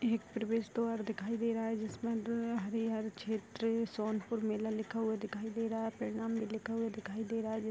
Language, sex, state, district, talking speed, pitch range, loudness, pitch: Hindi, female, Bihar, Sitamarhi, 200 wpm, 220-230 Hz, -37 LUFS, 225 Hz